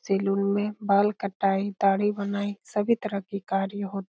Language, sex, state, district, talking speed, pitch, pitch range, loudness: Hindi, female, Bihar, Lakhisarai, 175 wpm, 200 Hz, 195-205 Hz, -26 LUFS